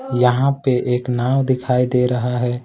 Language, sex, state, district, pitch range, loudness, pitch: Hindi, male, Jharkhand, Ranchi, 125-130 Hz, -18 LUFS, 125 Hz